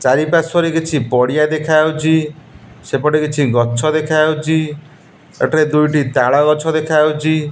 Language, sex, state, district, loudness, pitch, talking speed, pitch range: Odia, male, Odisha, Nuapada, -15 LUFS, 155 Hz, 105 wpm, 150-155 Hz